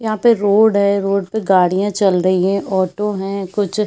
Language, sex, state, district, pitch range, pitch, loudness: Hindi, female, Chhattisgarh, Bilaspur, 190-210 Hz, 200 Hz, -16 LUFS